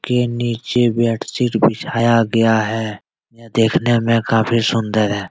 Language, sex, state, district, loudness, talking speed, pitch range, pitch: Hindi, male, Bihar, Jahanabad, -17 LUFS, 135 wpm, 110-120 Hz, 115 Hz